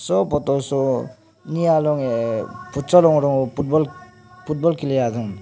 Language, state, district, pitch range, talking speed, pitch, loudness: Nyishi, Arunachal Pradesh, Papum Pare, 120-150 Hz, 135 wpm, 140 Hz, -20 LUFS